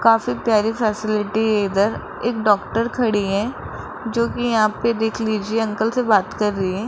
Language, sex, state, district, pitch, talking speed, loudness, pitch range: Hindi, female, Rajasthan, Jaipur, 220 Hz, 175 wpm, -20 LUFS, 210-230 Hz